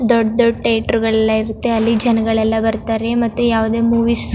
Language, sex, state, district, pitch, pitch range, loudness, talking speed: Kannada, female, Karnataka, Chamarajanagar, 230 Hz, 225-235 Hz, -16 LUFS, 165 wpm